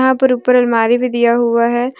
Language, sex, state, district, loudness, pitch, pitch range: Hindi, female, Jharkhand, Deoghar, -13 LUFS, 240 Hz, 235-250 Hz